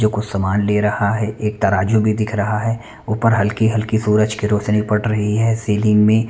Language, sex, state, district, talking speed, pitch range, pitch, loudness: Hindi, male, Chandigarh, Chandigarh, 210 wpm, 105-110 Hz, 105 Hz, -17 LUFS